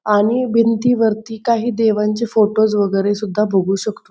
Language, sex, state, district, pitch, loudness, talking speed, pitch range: Marathi, female, Maharashtra, Pune, 215 Hz, -16 LUFS, 145 wpm, 210-230 Hz